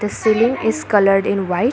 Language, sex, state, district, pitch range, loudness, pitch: English, female, Assam, Kamrup Metropolitan, 195-225 Hz, -16 LUFS, 210 Hz